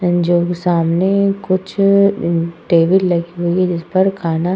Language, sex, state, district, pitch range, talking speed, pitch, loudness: Hindi, female, Uttar Pradesh, Hamirpur, 170-190 Hz, 120 wpm, 175 Hz, -15 LUFS